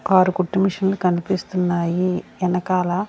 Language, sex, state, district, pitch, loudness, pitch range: Telugu, female, Andhra Pradesh, Sri Satya Sai, 185 Hz, -20 LUFS, 180-190 Hz